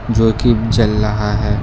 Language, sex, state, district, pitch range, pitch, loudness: Hindi, male, Karnataka, Bangalore, 105-115 Hz, 110 Hz, -15 LUFS